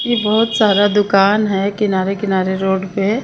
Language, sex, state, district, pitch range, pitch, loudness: Hindi, female, Chandigarh, Chandigarh, 195-210 Hz, 200 Hz, -15 LUFS